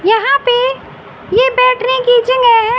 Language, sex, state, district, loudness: Hindi, female, Haryana, Rohtak, -11 LUFS